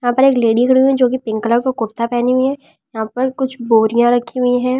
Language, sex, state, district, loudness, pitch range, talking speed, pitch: Hindi, female, Delhi, New Delhi, -15 LUFS, 235-260 Hz, 285 wpm, 245 Hz